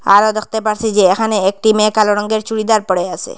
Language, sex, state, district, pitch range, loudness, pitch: Bengali, female, Assam, Hailakandi, 200-220 Hz, -14 LUFS, 215 Hz